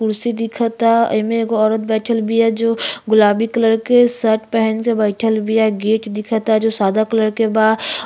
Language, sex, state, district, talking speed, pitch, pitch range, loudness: Bhojpuri, female, Uttar Pradesh, Ghazipur, 170 wpm, 225 Hz, 220-230 Hz, -16 LUFS